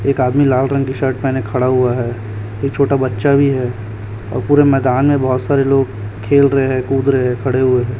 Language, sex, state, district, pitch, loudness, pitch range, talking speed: Hindi, male, Chhattisgarh, Raipur, 130 Hz, -15 LUFS, 120-135 Hz, 225 wpm